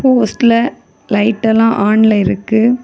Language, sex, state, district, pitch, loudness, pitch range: Tamil, female, Tamil Nadu, Kanyakumari, 225 Hz, -12 LUFS, 210-235 Hz